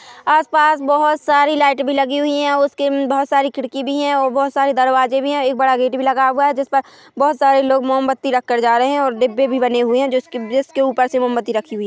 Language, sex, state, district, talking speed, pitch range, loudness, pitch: Hindi, female, Chhattisgarh, Korba, 265 wpm, 260-280 Hz, -16 LUFS, 270 Hz